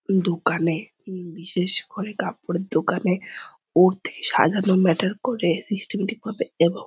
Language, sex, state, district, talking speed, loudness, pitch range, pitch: Bengali, female, West Bengal, Purulia, 105 wpm, -23 LUFS, 170-200 Hz, 185 Hz